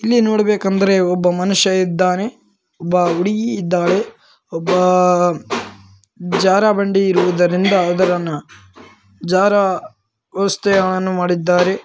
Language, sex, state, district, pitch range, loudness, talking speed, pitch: Kannada, male, Karnataka, Bellary, 175-195 Hz, -16 LUFS, 85 wpm, 185 Hz